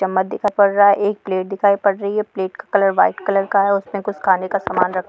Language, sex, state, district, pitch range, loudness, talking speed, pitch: Hindi, female, Jharkhand, Sahebganj, 190-200 Hz, -17 LUFS, 295 wpm, 200 Hz